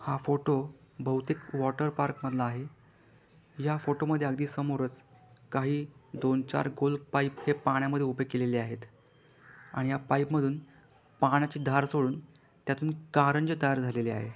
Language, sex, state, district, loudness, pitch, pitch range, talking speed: Marathi, male, Maharashtra, Pune, -30 LUFS, 140 Hz, 130-145 Hz, 145 wpm